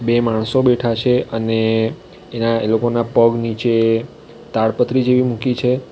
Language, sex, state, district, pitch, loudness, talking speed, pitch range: Gujarati, male, Gujarat, Valsad, 115 Hz, -17 LUFS, 140 wpm, 115-125 Hz